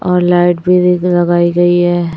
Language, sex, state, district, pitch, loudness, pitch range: Hindi, female, Chhattisgarh, Raipur, 175 Hz, -11 LUFS, 175-180 Hz